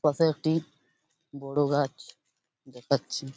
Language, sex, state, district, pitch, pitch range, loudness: Bengali, male, West Bengal, Purulia, 145 Hz, 135-150 Hz, -28 LUFS